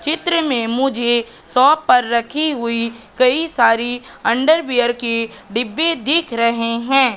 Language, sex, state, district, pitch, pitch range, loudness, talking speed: Hindi, female, Madhya Pradesh, Katni, 245 Hz, 230-290 Hz, -17 LUFS, 125 wpm